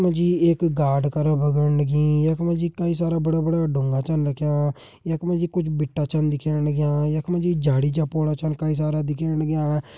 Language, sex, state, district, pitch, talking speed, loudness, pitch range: Hindi, male, Uttarakhand, Uttarkashi, 155 Hz, 215 wpm, -22 LUFS, 150-165 Hz